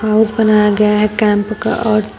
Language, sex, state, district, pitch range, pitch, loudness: Hindi, female, Uttar Pradesh, Shamli, 210-220 Hz, 215 Hz, -13 LUFS